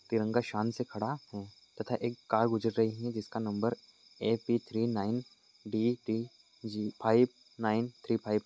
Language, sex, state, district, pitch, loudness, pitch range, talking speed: Hindi, male, Uttar Pradesh, Etah, 115 Hz, -33 LUFS, 110-120 Hz, 155 wpm